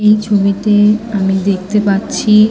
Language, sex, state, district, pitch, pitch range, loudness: Bengali, female, West Bengal, North 24 Parganas, 205 Hz, 200-210 Hz, -13 LUFS